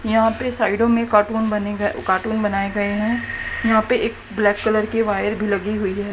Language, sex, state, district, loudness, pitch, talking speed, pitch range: Hindi, female, Haryana, Jhajjar, -20 LUFS, 215 Hz, 215 wpm, 205-225 Hz